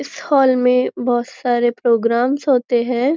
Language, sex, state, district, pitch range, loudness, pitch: Hindi, female, Maharashtra, Nagpur, 240-260 Hz, -17 LUFS, 250 Hz